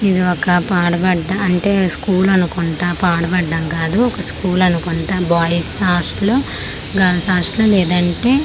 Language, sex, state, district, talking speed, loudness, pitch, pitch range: Telugu, female, Andhra Pradesh, Manyam, 115 wpm, -16 LUFS, 180 Hz, 175-190 Hz